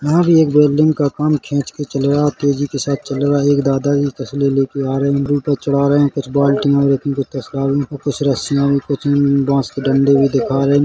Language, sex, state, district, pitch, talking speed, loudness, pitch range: Hindi, male, Chhattisgarh, Rajnandgaon, 140 Hz, 260 wpm, -16 LUFS, 140-145 Hz